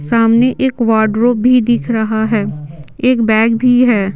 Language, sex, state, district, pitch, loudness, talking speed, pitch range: Hindi, female, Bihar, Patna, 230 Hz, -13 LUFS, 160 wpm, 220-245 Hz